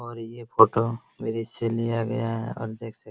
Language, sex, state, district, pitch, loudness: Hindi, male, Bihar, Araria, 115 Hz, -25 LUFS